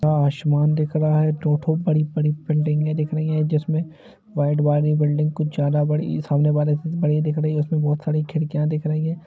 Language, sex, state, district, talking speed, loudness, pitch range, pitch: Hindi, male, Jharkhand, Jamtara, 200 wpm, -21 LUFS, 150-155 Hz, 155 Hz